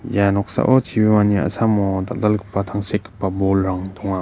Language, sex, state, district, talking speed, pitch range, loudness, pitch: Garo, male, Meghalaya, West Garo Hills, 115 wpm, 95-105 Hz, -19 LUFS, 100 Hz